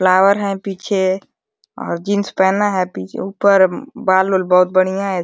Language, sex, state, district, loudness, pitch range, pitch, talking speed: Hindi, male, Uttar Pradesh, Deoria, -16 LUFS, 185-200 Hz, 190 Hz, 160 wpm